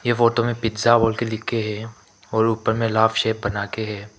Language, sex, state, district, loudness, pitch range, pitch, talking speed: Hindi, male, Arunachal Pradesh, Papum Pare, -21 LUFS, 105-115 Hz, 110 Hz, 170 wpm